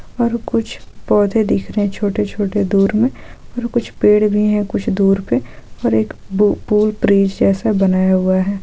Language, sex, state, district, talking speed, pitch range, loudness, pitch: Hindi, female, Jharkhand, Sahebganj, 180 wpm, 190-210 Hz, -16 LUFS, 200 Hz